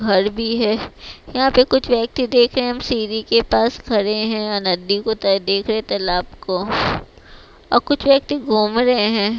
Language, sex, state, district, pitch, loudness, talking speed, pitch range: Hindi, female, Bihar, West Champaran, 220 Hz, -18 LUFS, 185 wpm, 205-245 Hz